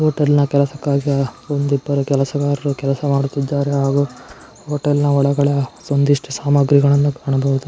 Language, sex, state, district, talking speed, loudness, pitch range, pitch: Kannada, male, Karnataka, Chamarajanagar, 125 wpm, -17 LUFS, 140-145 Hz, 140 Hz